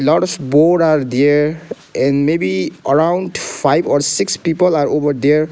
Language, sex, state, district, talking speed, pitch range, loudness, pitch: English, male, Sikkim, Gangtok, 150 wpm, 140-165 Hz, -15 LUFS, 150 Hz